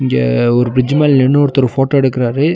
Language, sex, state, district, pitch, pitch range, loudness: Tamil, male, Tamil Nadu, Nilgiris, 130 Hz, 120-140 Hz, -12 LUFS